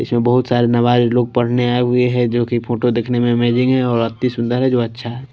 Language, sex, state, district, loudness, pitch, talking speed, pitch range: Hindi, male, Chhattisgarh, Raipur, -16 LUFS, 120 Hz, 260 wpm, 120-125 Hz